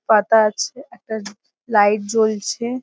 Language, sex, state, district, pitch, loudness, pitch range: Bengali, female, West Bengal, Paschim Medinipur, 220 Hz, -19 LUFS, 210-245 Hz